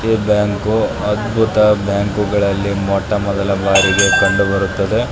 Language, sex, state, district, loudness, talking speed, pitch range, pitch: Kannada, male, Karnataka, Belgaum, -15 LUFS, 105 wpm, 100-105 Hz, 100 Hz